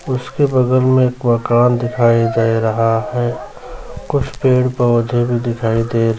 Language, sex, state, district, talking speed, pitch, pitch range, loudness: Hindi, male, Bihar, Muzaffarpur, 145 wpm, 120 Hz, 115-130 Hz, -15 LUFS